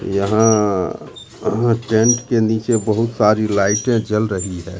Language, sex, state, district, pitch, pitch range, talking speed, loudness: Hindi, male, Bihar, Katihar, 110 Hz, 100-115 Hz, 125 wpm, -17 LUFS